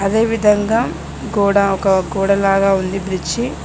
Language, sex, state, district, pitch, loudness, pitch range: Telugu, female, Telangana, Mahabubabad, 200 Hz, -16 LUFS, 195-210 Hz